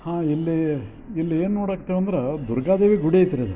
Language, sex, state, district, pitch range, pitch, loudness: Kannada, male, Karnataka, Bijapur, 150-185 Hz, 165 Hz, -22 LUFS